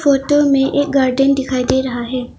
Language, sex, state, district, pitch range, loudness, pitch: Hindi, female, Arunachal Pradesh, Longding, 255-280 Hz, -15 LUFS, 270 Hz